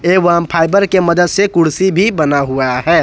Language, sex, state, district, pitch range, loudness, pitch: Hindi, male, Jharkhand, Ranchi, 160-185 Hz, -12 LUFS, 170 Hz